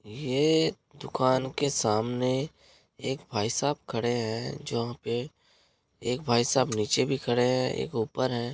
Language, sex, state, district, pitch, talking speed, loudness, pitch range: Hindi, male, Bihar, Gopalganj, 125 Hz, 145 wpm, -28 LUFS, 120-135 Hz